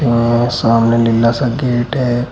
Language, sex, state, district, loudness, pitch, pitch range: Hindi, male, Uttar Pradesh, Shamli, -14 LUFS, 120 Hz, 115-125 Hz